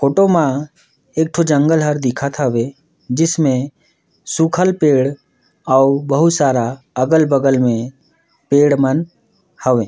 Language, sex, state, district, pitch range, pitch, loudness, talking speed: Surgujia, male, Chhattisgarh, Sarguja, 130-160 Hz, 140 Hz, -15 LUFS, 130 wpm